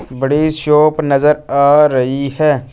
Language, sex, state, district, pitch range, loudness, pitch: Hindi, male, Punjab, Fazilka, 140-150 Hz, -13 LUFS, 145 Hz